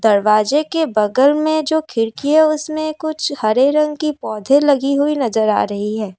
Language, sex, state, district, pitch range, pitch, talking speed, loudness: Hindi, female, Assam, Kamrup Metropolitan, 220-310 Hz, 285 Hz, 185 wpm, -16 LUFS